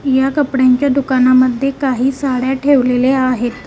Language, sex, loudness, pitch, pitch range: Marathi, female, -14 LUFS, 265 Hz, 255-275 Hz